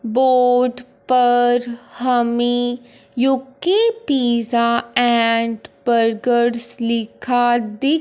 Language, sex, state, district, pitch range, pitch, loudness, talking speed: Hindi, female, Punjab, Fazilka, 235-250 Hz, 245 Hz, -17 LUFS, 65 wpm